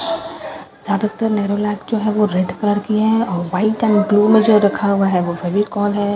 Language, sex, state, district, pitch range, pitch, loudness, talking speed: Hindi, female, Bihar, Katihar, 205-220 Hz, 210 Hz, -17 LUFS, 205 wpm